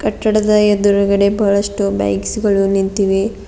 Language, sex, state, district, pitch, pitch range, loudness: Kannada, female, Karnataka, Bidar, 200 Hz, 195-210 Hz, -15 LUFS